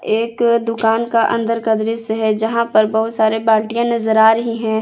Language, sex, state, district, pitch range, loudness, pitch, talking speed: Hindi, female, Jharkhand, Palamu, 220-230 Hz, -16 LUFS, 225 Hz, 200 wpm